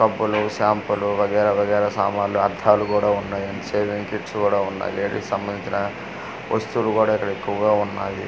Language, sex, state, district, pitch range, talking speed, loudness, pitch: Telugu, male, Andhra Pradesh, Manyam, 100-105 Hz, 145 wpm, -22 LUFS, 105 Hz